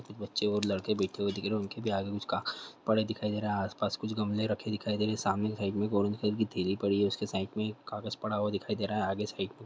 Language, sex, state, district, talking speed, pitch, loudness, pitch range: Hindi, male, Andhra Pradesh, Guntur, 300 wpm, 105 Hz, -33 LUFS, 100-105 Hz